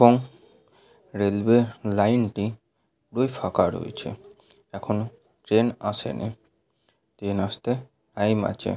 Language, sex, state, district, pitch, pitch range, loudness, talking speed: Bengali, male, West Bengal, Purulia, 110 Hz, 100-120 Hz, -25 LUFS, 95 wpm